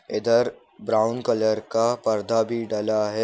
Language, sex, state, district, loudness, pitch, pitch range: Kumaoni, male, Uttarakhand, Uttarkashi, -23 LUFS, 110 Hz, 110-115 Hz